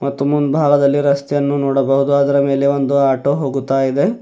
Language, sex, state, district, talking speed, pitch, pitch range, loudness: Kannada, male, Karnataka, Bidar, 130 wpm, 140 Hz, 135-145 Hz, -15 LUFS